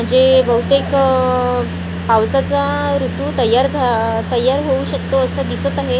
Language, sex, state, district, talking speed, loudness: Marathi, female, Maharashtra, Gondia, 160 wpm, -15 LUFS